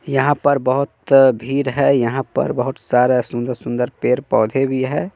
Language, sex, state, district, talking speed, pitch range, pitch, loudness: Hindi, male, Bihar, West Champaran, 165 wpm, 125-140 Hz, 135 Hz, -17 LUFS